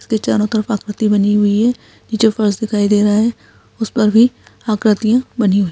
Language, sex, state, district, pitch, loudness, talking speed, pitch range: Hindi, female, Bihar, Saharsa, 215 Hz, -15 LUFS, 220 wpm, 210-225 Hz